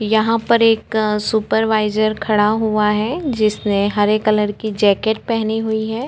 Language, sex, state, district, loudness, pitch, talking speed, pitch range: Hindi, female, Chhattisgarh, Korba, -17 LUFS, 215 Hz, 150 wpm, 210-220 Hz